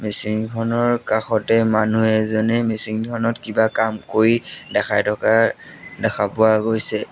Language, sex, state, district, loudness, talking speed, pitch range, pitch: Assamese, male, Assam, Sonitpur, -18 LUFS, 125 wpm, 110-115 Hz, 110 Hz